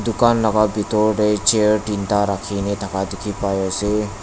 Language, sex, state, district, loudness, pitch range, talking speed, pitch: Nagamese, male, Nagaland, Dimapur, -19 LUFS, 100-105 Hz, 130 wpm, 105 Hz